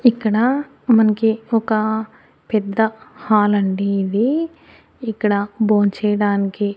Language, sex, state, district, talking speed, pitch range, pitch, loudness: Telugu, female, Andhra Pradesh, Annamaya, 70 wpm, 205-225 Hz, 215 Hz, -18 LUFS